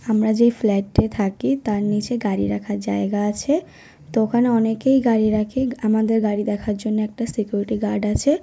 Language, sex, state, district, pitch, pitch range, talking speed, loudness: Bengali, female, West Bengal, North 24 Parganas, 215 Hz, 205-235 Hz, 180 wpm, -20 LUFS